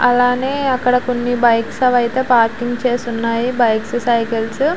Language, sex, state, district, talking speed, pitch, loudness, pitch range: Telugu, female, Andhra Pradesh, Visakhapatnam, 125 wpm, 245 Hz, -16 LUFS, 235-250 Hz